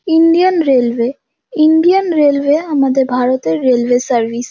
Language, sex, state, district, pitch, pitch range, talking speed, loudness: Bengali, female, West Bengal, Jhargram, 275 Hz, 245-325 Hz, 120 wpm, -13 LUFS